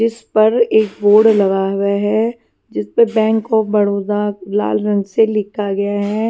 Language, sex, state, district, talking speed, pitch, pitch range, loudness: Hindi, female, Haryana, Jhajjar, 170 wpm, 210 Hz, 200-220 Hz, -15 LUFS